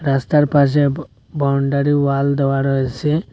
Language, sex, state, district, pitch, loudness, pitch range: Bengali, male, Assam, Hailakandi, 140 Hz, -17 LUFS, 135-145 Hz